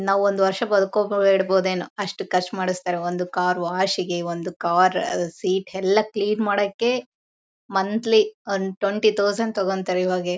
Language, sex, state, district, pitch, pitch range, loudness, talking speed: Kannada, female, Karnataka, Bellary, 190 Hz, 180-205 Hz, -22 LUFS, 140 wpm